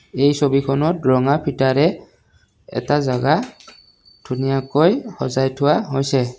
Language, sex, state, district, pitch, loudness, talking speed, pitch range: Assamese, male, Assam, Kamrup Metropolitan, 135 Hz, -18 LUFS, 95 wpm, 130-150 Hz